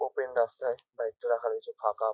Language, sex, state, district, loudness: Bengali, male, West Bengal, North 24 Parganas, -32 LUFS